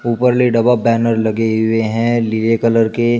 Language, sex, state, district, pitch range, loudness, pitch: Hindi, male, Uttar Pradesh, Shamli, 110-120 Hz, -15 LUFS, 115 Hz